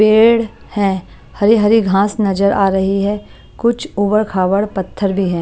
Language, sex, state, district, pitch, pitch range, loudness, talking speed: Hindi, female, Maharashtra, Washim, 200 Hz, 195-215 Hz, -15 LUFS, 165 wpm